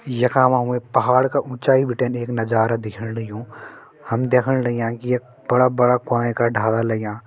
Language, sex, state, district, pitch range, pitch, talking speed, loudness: Hindi, male, Uttarakhand, Uttarkashi, 115-125 Hz, 125 Hz, 175 wpm, -20 LUFS